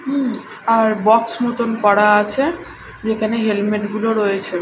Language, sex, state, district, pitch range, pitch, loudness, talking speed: Bengali, female, Odisha, Khordha, 210-235 Hz, 220 Hz, -17 LUFS, 130 wpm